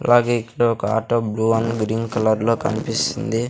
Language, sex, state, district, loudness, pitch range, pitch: Telugu, male, Andhra Pradesh, Sri Satya Sai, -20 LUFS, 110-120 Hz, 115 Hz